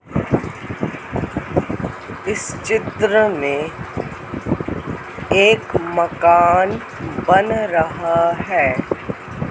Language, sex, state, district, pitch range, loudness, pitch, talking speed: Hindi, male, Madhya Pradesh, Katni, 170-205 Hz, -18 LUFS, 175 Hz, 50 wpm